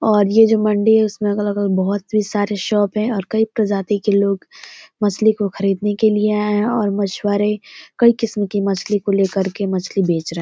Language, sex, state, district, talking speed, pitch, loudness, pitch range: Hindi, female, Bihar, Gopalganj, 220 wpm, 205 Hz, -18 LUFS, 200-215 Hz